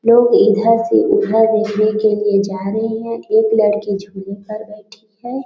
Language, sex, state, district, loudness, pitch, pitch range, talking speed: Hindi, female, Chhattisgarh, Raigarh, -15 LUFS, 215 Hz, 210-225 Hz, 175 wpm